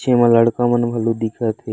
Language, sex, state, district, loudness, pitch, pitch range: Chhattisgarhi, male, Chhattisgarh, Raigarh, -17 LUFS, 115 Hz, 115-120 Hz